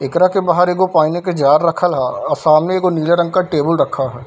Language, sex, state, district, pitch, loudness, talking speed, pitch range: Hindi, male, Bihar, Darbhanga, 170 Hz, -15 LUFS, 265 wpm, 155-180 Hz